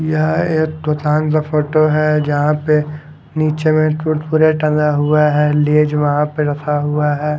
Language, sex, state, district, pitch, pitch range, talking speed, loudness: Hindi, male, Haryana, Charkhi Dadri, 150 Hz, 150-155 Hz, 155 wpm, -15 LUFS